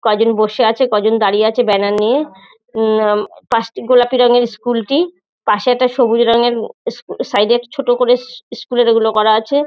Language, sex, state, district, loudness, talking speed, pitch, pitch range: Bengali, female, West Bengal, North 24 Parganas, -14 LUFS, 175 wpm, 235 Hz, 215-250 Hz